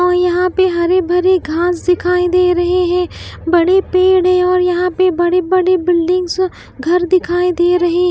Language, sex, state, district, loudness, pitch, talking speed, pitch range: Hindi, female, Bihar, West Champaran, -13 LUFS, 360 Hz, 165 wpm, 355-365 Hz